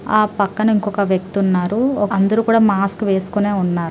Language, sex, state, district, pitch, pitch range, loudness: Telugu, female, Andhra Pradesh, Guntur, 205 Hz, 195-215 Hz, -17 LUFS